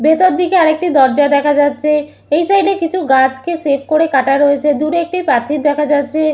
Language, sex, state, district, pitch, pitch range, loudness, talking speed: Bengali, female, West Bengal, Malda, 300 Hz, 285-335 Hz, -13 LUFS, 200 wpm